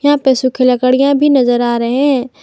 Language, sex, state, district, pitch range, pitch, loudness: Hindi, female, Jharkhand, Garhwa, 250-280 Hz, 260 Hz, -12 LUFS